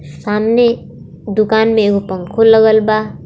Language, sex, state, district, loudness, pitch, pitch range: Bhojpuri, female, Jharkhand, Palamu, -13 LUFS, 215 Hz, 205-220 Hz